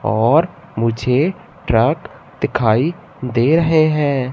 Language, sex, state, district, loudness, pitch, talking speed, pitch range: Hindi, male, Madhya Pradesh, Katni, -17 LUFS, 145 Hz, 95 wpm, 120-170 Hz